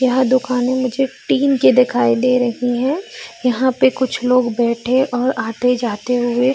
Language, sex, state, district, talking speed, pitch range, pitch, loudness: Hindi, female, Bihar, Jamui, 165 wpm, 235-260 Hz, 250 Hz, -17 LUFS